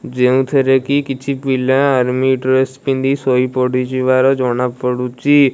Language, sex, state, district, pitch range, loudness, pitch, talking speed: Odia, male, Odisha, Malkangiri, 125-135 Hz, -15 LUFS, 130 Hz, 130 wpm